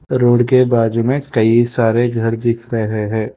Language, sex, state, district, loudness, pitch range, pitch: Hindi, female, Telangana, Hyderabad, -15 LUFS, 115-120 Hz, 115 Hz